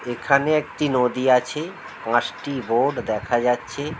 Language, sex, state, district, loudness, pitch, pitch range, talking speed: Bengali, male, West Bengal, Jhargram, -22 LUFS, 125 Hz, 120-140 Hz, 120 wpm